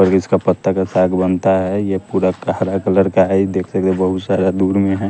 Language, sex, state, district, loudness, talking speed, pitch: Hindi, male, Bihar, West Champaran, -16 LUFS, 235 wpm, 95 Hz